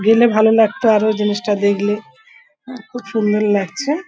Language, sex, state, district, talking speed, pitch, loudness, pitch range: Bengali, female, West Bengal, Kolkata, 160 wpm, 220 Hz, -16 LUFS, 205-235 Hz